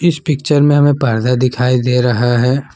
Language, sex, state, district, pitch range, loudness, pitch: Hindi, male, Assam, Kamrup Metropolitan, 125-145 Hz, -13 LUFS, 130 Hz